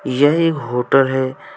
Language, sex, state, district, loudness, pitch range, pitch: Hindi, male, Jharkhand, Deoghar, -16 LUFS, 130-145 Hz, 135 Hz